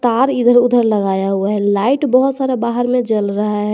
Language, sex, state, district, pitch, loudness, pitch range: Hindi, male, Jharkhand, Garhwa, 235 Hz, -15 LUFS, 210-250 Hz